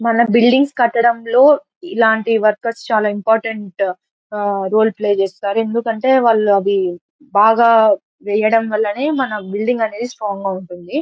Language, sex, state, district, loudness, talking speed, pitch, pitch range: Telugu, female, Andhra Pradesh, Anantapur, -16 LUFS, 130 wpm, 225 Hz, 205-235 Hz